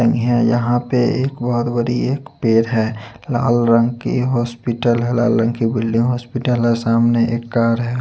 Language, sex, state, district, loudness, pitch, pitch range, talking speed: Hindi, male, Chandigarh, Chandigarh, -17 LUFS, 120 Hz, 115-120 Hz, 180 wpm